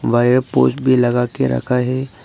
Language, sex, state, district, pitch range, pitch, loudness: Hindi, male, Arunachal Pradesh, Lower Dibang Valley, 115-125 Hz, 120 Hz, -16 LUFS